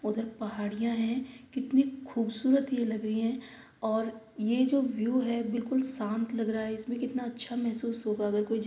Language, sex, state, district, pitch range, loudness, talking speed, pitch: Hindi, female, Uttar Pradesh, Jalaun, 220-255 Hz, -31 LUFS, 200 wpm, 235 Hz